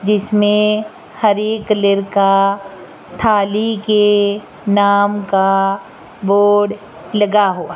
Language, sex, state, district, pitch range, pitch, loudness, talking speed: Hindi, female, Rajasthan, Jaipur, 195-210 Hz, 205 Hz, -15 LUFS, 95 wpm